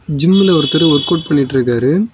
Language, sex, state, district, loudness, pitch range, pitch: Tamil, male, Tamil Nadu, Kanyakumari, -12 LUFS, 140-180 Hz, 155 Hz